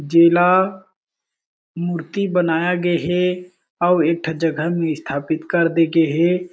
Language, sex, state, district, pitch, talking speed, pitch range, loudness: Chhattisgarhi, male, Chhattisgarh, Jashpur, 170 Hz, 130 wpm, 165-180 Hz, -18 LUFS